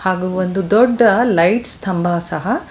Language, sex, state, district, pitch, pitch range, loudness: Kannada, female, Karnataka, Bangalore, 190 Hz, 180-235 Hz, -16 LUFS